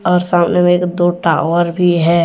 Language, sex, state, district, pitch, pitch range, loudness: Hindi, male, Jharkhand, Deoghar, 175 Hz, 170-180 Hz, -13 LUFS